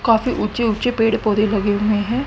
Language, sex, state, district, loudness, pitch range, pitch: Hindi, female, Haryana, Jhajjar, -18 LUFS, 210-235 Hz, 225 Hz